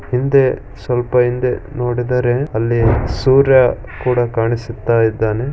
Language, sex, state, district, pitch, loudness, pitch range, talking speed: Kannada, male, Karnataka, Shimoga, 120 Hz, -16 LUFS, 115-125 Hz, 100 wpm